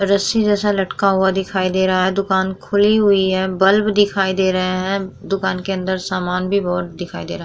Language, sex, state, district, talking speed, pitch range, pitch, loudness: Hindi, female, Bihar, Vaishali, 215 wpm, 185-195 Hz, 190 Hz, -17 LUFS